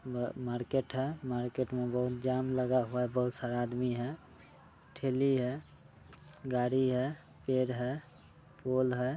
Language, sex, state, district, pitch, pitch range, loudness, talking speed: Hindi, male, Bihar, Muzaffarpur, 125 Hz, 125-130 Hz, -34 LUFS, 145 wpm